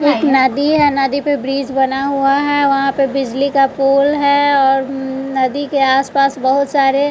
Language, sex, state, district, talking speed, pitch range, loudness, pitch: Hindi, female, Bihar, West Champaran, 185 wpm, 270-285 Hz, -14 LUFS, 275 Hz